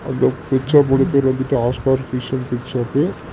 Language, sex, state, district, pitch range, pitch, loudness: Tamil, male, Tamil Nadu, Namakkal, 125-135 Hz, 130 Hz, -18 LUFS